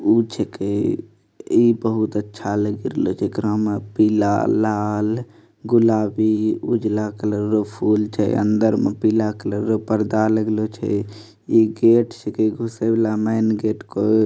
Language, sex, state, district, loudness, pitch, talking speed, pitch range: Angika, male, Bihar, Bhagalpur, -20 LUFS, 110 Hz, 120 wpm, 105-110 Hz